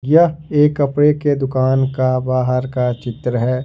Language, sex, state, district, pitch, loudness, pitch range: Hindi, male, Jharkhand, Ranchi, 130 Hz, -17 LUFS, 125-145 Hz